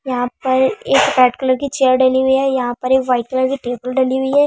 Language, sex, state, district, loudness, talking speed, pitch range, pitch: Hindi, female, Delhi, New Delhi, -16 LUFS, 230 wpm, 255-265 Hz, 260 Hz